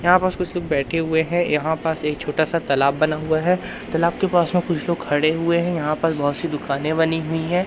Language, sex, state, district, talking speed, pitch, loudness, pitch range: Hindi, male, Madhya Pradesh, Umaria, 250 wpm, 160 Hz, -21 LUFS, 155-175 Hz